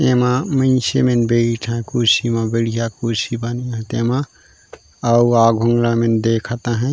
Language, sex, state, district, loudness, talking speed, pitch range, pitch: Chhattisgarhi, male, Chhattisgarh, Raigarh, -17 LUFS, 165 wpm, 115-125 Hz, 115 Hz